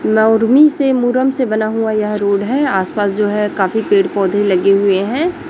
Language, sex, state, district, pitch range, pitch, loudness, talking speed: Hindi, female, Chhattisgarh, Raipur, 200-255 Hz, 215 Hz, -14 LUFS, 185 wpm